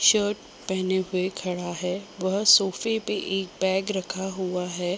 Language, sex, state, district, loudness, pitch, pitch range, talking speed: Hindi, female, Jharkhand, Jamtara, -25 LUFS, 190 Hz, 185-195 Hz, 145 wpm